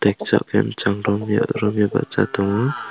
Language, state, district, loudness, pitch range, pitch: Kokborok, Tripura, West Tripura, -19 LUFS, 100-110 Hz, 105 Hz